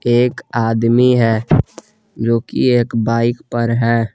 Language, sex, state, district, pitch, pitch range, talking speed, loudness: Hindi, male, Jharkhand, Garhwa, 115 Hz, 115-120 Hz, 130 wpm, -15 LUFS